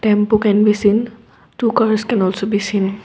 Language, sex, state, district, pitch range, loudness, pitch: English, female, Assam, Kamrup Metropolitan, 205-220 Hz, -16 LUFS, 210 Hz